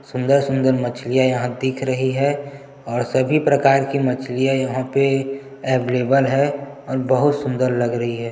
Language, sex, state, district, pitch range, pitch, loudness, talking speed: Hindi, male, Chhattisgarh, Jashpur, 125-140 Hz, 130 Hz, -19 LUFS, 165 wpm